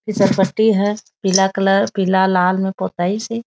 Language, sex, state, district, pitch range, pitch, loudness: Chhattisgarhi, female, Chhattisgarh, Raigarh, 190-210 Hz, 195 Hz, -17 LUFS